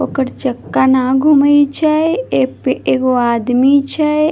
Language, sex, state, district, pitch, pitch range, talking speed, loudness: Maithili, female, Bihar, Madhepura, 265 Hz, 250-295 Hz, 155 wpm, -13 LUFS